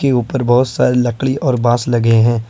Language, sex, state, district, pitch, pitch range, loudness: Hindi, male, Jharkhand, Ranchi, 120 Hz, 120-130 Hz, -14 LUFS